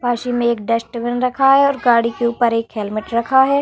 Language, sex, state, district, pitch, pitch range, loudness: Hindi, female, Uttar Pradesh, Varanasi, 235 Hz, 230-255 Hz, -17 LUFS